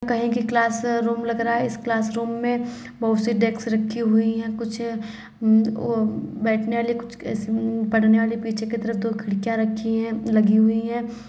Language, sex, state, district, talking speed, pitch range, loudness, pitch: Hindi, female, Uttar Pradesh, Hamirpur, 170 wpm, 220-235 Hz, -22 LUFS, 225 Hz